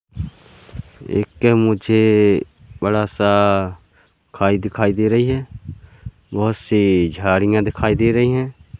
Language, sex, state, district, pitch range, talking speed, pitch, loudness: Hindi, male, Madhya Pradesh, Katni, 100-110 Hz, 110 wpm, 105 Hz, -17 LUFS